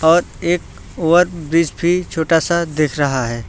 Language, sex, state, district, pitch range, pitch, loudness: Hindi, male, Uttar Pradesh, Lucknow, 155-170 Hz, 165 Hz, -17 LUFS